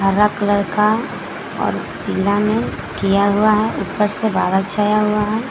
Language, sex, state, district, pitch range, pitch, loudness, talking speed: Hindi, female, Jharkhand, Garhwa, 205-215 Hz, 210 Hz, -18 LUFS, 165 wpm